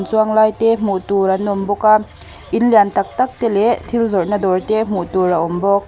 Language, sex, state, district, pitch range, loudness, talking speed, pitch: Mizo, female, Mizoram, Aizawl, 195-220 Hz, -16 LUFS, 215 wpm, 205 Hz